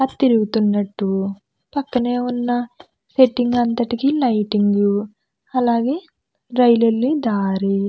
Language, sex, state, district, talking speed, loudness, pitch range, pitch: Telugu, female, Andhra Pradesh, Krishna, 90 wpm, -19 LUFS, 205-250 Hz, 235 Hz